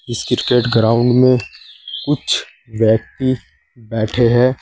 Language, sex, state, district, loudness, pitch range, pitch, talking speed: Hindi, male, Uttar Pradesh, Saharanpur, -16 LUFS, 110-125 Hz, 120 Hz, 105 wpm